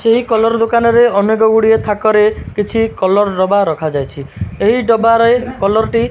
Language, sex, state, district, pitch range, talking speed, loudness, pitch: Odia, male, Odisha, Malkangiri, 200-230 Hz, 155 wpm, -12 LUFS, 220 Hz